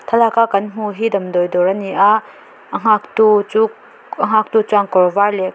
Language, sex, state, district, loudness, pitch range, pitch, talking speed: Mizo, female, Mizoram, Aizawl, -15 LUFS, 195-220 Hz, 210 Hz, 195 wpm